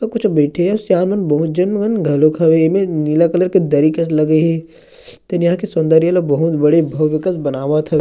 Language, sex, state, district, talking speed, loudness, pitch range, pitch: Chhattisgarhi, male, Chhattisgarh, Sarguja, 215 wpm, -15 LUFS, 155-185 Hz, 165 Hz